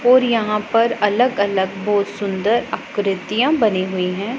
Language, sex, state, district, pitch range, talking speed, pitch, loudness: Hindi, female, Punjab, Pathankot, 195-235 Hz, 150 wpm, 210 Hz, -18 LUFS